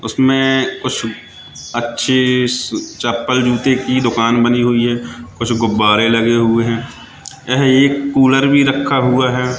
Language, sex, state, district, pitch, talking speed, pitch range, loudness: Hindi, male, Madhya Pradesh, Katni, 125 Hz, 140 wpm, 120-130 Hz, -14 LUFS